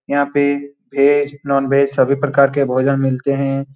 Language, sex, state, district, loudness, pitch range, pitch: Hindi, male, Bihar, Saran, -16 LUFS, 135-140 Hz, 140 Hz